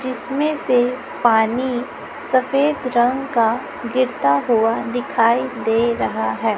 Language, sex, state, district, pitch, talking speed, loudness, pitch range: Hindi, female, Chhattisgarh, Raipur, 245 Hz, 110 wpm, -19 LUFS, 225-255 Hz